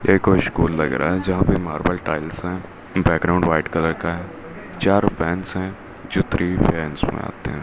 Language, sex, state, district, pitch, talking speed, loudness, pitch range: Hindi, male, Rajasthan, Bikaner, 85 Hz, 195 wpm, -21 LUFS, 80-95 Hz